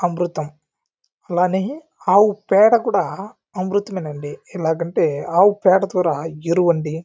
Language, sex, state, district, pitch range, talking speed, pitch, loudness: Telugu, male, Andhra Pradesh, Chittoor, 165-195 Hz, 100 wpm, 180 Hz, -18 LUFS